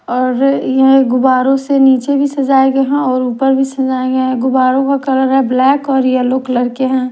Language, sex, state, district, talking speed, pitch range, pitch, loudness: Hindi, female, Odisha, Nuapada, 210 wpm, 255-270 Hz, 265 Hz, -12 LUFS